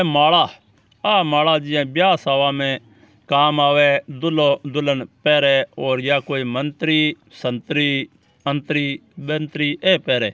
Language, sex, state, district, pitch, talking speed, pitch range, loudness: Marwari, male, Rajasthan, Churu, 145 Hz, 120 wpm, 140-155 Hz, -18 LUFS